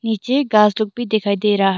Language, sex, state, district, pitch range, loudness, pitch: Hindi, female, Arunachal Pradesh, Longding, 205-230 Hz, -17 LUFS, 215 Hz